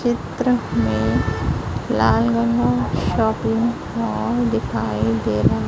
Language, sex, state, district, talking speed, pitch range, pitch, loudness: Hindi, female, Chhattisgarh, Raipur, 95 wpm, 110-120 Hz, 115 Hz, -20 LUFS